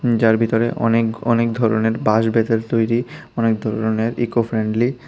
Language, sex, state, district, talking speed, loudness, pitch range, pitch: Bengali, female, Tripura, West Tripura, 140 wpm, -18 LUFS, 110-115 Hz, 115 Hz